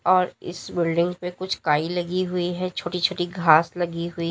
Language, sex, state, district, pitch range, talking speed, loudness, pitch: Hindi, female, Uttar Pradesh, Lalitpur, 170-180 Hz, 195 wpm, -23 LUFS, 175 Hz